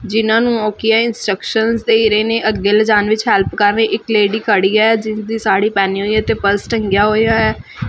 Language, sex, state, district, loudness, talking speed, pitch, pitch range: Punjabi, female, Punjab, Fazilka, -14 LUFS, 220 wpm, 215 Hz, 205-225 Hz